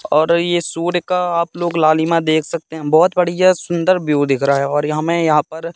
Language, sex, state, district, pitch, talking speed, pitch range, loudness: Hindi, male, Madhya Pradesh, Katni, 165 Hz, 230 wpm, 155-175 Hz, -16 LUFS